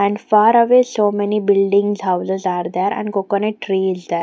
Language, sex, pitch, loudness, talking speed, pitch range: English, female, 200 Hz, -16 LUFS, 200 wpm, 190-210 Hz